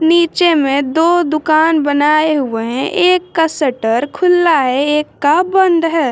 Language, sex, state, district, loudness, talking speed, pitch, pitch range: Hindi, female, Jharkhand, Garhwa, -13 LUFS, 155 wpm, 310 Hz, 285-340 Hz